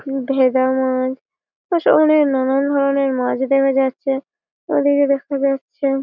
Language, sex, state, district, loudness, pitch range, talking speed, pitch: Bengali, female, West Bengal, Malda, -17 LUFS, 260-275 Hz, 130 wpm, 270 Hz